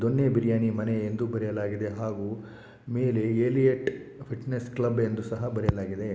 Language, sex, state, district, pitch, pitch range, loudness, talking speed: Kannada, male, Karnataka, Shimoga, 115 Hz, 110-120 Hz, -28 LUFS, 135 wpm